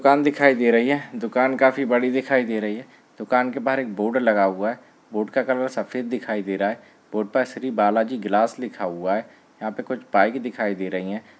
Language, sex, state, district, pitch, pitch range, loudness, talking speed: Hindi, male, Rajasthan, Nagaur, 120 Hz, 105-130 Hz, -22 LUFS, 230 wpm